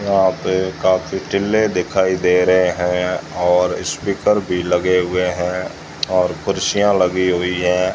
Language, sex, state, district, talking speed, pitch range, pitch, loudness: Hindi, male, Rajasthan, Jaisalmer, 145 wpm, 90-95 Hz, 90 Hz, -17 LUFS